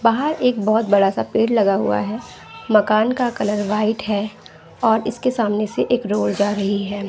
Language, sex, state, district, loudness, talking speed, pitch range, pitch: Hindi, female, Bihar, West Champaran, -19 LUFS, 210 wpm, 205-230 Hz, 215 Hz